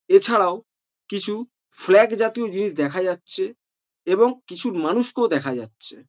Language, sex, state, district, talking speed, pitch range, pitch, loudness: Bengali, male, West Bengal, Jhargram, 120 wpm, 185-245 Hz, 220 Hz, -21 LUFS